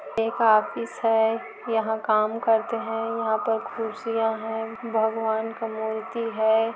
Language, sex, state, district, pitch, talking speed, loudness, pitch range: Hindi, female, Chhattisgarh, Korba, 225 Hz, 135 wpm, -25 LUFS, 220-225 Hz